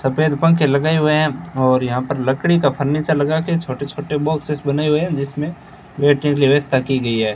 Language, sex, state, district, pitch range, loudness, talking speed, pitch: Hindi, male, Rajasthan, Bikaner, 135-155 Hz, -18 LUFS, 210 wpm, 145 Hz